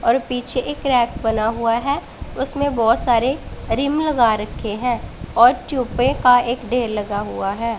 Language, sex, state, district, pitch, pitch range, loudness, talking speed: Hindi, female, Punjab, Pathankot, 245 Hz, 230-260 Hz, -19 LUFS, 160 wpm